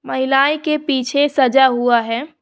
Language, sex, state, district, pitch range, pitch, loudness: Hindi, female, Bihar, Bhagalpur, 255-295 Hz, 270 Hz, -16 LUFS